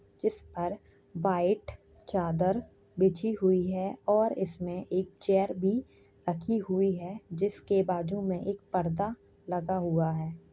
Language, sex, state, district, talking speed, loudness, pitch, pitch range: Hindi, female, Uttar Pradesh, Jyotiba Phule Nagar, 130 wpm, -31 LUFS, 190 Hz, 175-200 Hz